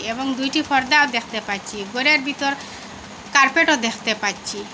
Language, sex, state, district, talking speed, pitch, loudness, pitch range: Bengali, female, Assam, Hailakandi, 125 wpm, 260 Hz, -19 LUFS, 220-285 Hz